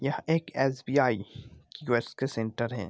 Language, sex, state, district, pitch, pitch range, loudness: Hindi, male, Bihar, Gopalganj, 125 Hz, 115-135 Hz, -29 LUFS